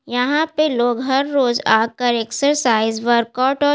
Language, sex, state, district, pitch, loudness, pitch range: Hindi, female, Bihar, Gaya, 250 Hz, -17 LUFS, 235-280 Hz